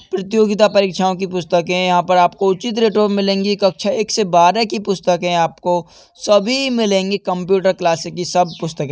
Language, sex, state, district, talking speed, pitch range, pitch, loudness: Hindi, male, Uttar Pradesh, Etah, 175 wpm, 180-205 Hz, 190 Hz, -16 LUFS